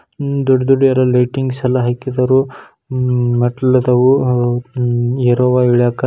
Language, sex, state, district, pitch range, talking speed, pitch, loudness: Kannada, male, Karnataka, Shimoga, 125-130 Hz, 130 wpm, 125 Hz, -14 LUFS